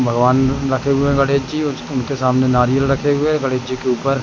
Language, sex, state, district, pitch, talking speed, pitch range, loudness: Hindi, male, Madhya Pradesh, Katni, 135 Hz, 210 wpm, 130-140 Hz, -17 LUFS